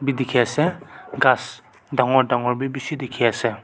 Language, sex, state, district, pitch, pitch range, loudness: Nagamese, male, Nagaland, Kohima, 130 Hz, 125-135 Hz, -21 LUFS